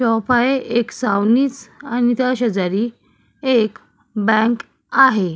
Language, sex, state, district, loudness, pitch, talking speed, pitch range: Marathi, female, Maharashtra, Solapur, -18 LUFS, 235 Hz, 110 wpm, 220-255 Hz